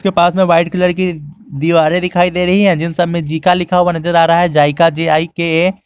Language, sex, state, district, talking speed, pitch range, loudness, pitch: Hindi, male, Jharkhand, Garhwa, 245 wpm, 165-180 Hz, -13 LUFS, 175 Hz